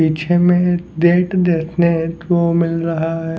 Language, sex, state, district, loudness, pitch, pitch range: Hindi, male, Haryana, Jhajjar, -16 LUFS, 170 Hz, 165-175 Hz